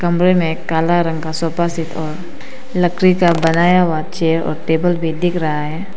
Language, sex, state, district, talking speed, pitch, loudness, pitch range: Hindi, female, Arunachal Pradesh, Papum Pare, 190 wpm, 170 Hz, -16 LUFS, 160-175 Hz